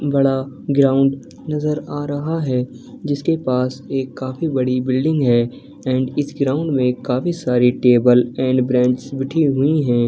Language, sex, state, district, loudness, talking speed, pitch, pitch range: Hindi, male, Chhattisgarh, Balrampur, -18 LUFS, 155 wpm, 135 Hz, 125-145 Hz